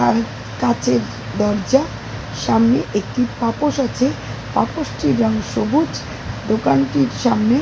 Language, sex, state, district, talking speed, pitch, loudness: Bengali, female, West Bengal, Jalpaiguri, 110 wpm, 215 Hz, -19 LUFS